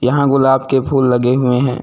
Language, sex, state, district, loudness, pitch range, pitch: Hindi, male, Uttar Pradesh, Lucknow, -14 LUFS, 125-135 Hz, 130 Hz